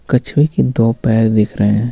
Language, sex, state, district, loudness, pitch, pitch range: Hindi, male, Jharkhand, Ranchi, -14 LUFS, 115 Hz, 110-125 Hz